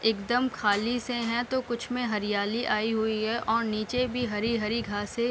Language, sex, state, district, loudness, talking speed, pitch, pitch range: Hindi, female, Bihar, Sitamarhi, -28 LUFS, 190 wpm, 230 Hz, 215-245 Hz